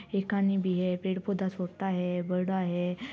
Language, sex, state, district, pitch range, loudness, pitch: Marwari, female, Rajasthan, Churu, 180-195 Hz, -30 LUFS, 185 Hz